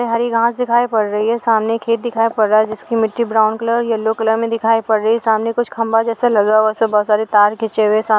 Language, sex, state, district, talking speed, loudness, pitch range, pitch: Hindi, female, Bihar, Muzaffarpur, 285 wpm, -16 LUFS, 215-230 Hz, 225 Hz